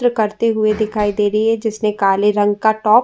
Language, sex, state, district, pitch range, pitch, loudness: Hindi, female, Uttar Pradesh, Jyotiba Phule Nagar, 210-220 Hz, 215 Hz, -16 LUFS